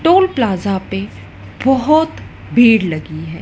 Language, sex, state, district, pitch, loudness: Hindi, female, Madhya Pradesh, Dhar, 195 Hz, -15 LUFS